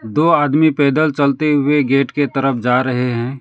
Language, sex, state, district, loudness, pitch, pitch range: Hindi, male, West Bengal, Alipurduar, -15 LUFS, 140 Hz, 130-150 Hz